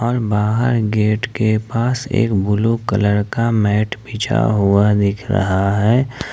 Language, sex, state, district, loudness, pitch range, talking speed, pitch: Hindi, male, Jharkhand, Ranchi, -17 LUFS, 105-115 Hz, 135 wpm, 110 Hz